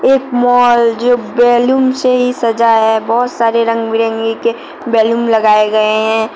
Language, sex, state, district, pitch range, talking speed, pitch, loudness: Hindi, female, Jharkhand, Deoghar, 225-245 Hz, 160 wpm, 230 Hz, -12 LUFS